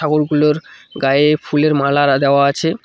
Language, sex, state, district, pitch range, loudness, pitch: Bengali, male, West Bengal, Cooch Behar, 140-150 Hz, -15 LUFS, 150 Hz